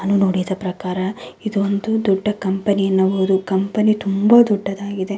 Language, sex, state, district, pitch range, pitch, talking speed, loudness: Kannada, female, Karnataka, Raichur, 190-205 Hz, 195 Hz, 115 wpm, -18 LUFS